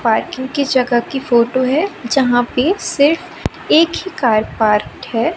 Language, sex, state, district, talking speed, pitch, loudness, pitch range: Hindi, female, Madhya Pradesh, Katni, 155 wpm, 265 Hz, -16 LUFS, 240-325 Hz